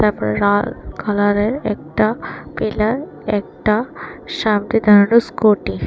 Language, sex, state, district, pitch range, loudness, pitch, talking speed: Bengali, female, Tripura, West Tripura, 205-225 Hz, -17 LUFS, 210 Hz, 100 wpm